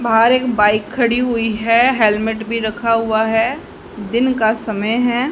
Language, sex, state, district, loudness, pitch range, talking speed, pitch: Hindi, female, Haryana, Charkhi Dadri, -16 LUFS, 220-240 Hz, 170 wpm, 225 Hz